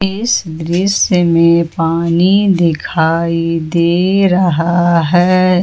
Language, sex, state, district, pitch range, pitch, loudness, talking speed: Hindi, female, Jharkhand, Ranchi, 165-185 Hz, 175 Hz, -12 LUFS, 85 wpm